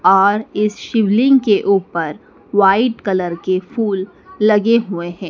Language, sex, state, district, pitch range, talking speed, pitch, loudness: Hindi, female, Madhya Pradesh, Dhar, 190-225 Hz, 135 wpm, 205 Hz, -16 LUFS